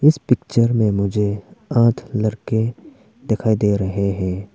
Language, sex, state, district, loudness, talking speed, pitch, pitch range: Hindi, male, Arunachal Pradesh, Papum Pare, -19 LUFS, 105 wpm, 110 Hz, 100-120 Hz